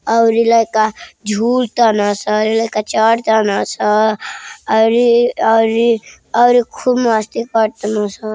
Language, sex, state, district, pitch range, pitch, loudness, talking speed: Hindi, male, Uttar Pradesh, Deoria, 215-230 Hz, 225 Hz, -14 LUFS, 110 wpm